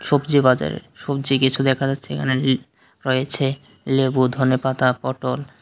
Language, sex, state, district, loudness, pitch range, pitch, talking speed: Bengali, male, Tripura, West Tripura, -20 LUFS, 130-135 Hz, 130 Hz, 130 wpm